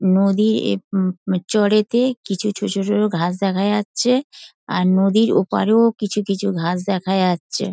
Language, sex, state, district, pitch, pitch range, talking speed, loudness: Bengali, female, West Bengal, Dakshin Dinajpur, 200 Hz, 190-210 Hz, 140 wpm, -19 LUFS